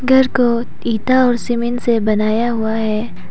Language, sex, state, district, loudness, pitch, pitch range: Hindi, female, Arunachal Pradesh, Papum Pare, -16 LUFS, 235 Hz, 220-245 Hz